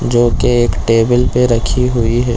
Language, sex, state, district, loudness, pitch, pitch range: Hindi, male, Chhattisgarh, Korba, -13 LUFS, 120 Hz, 115-120 Hz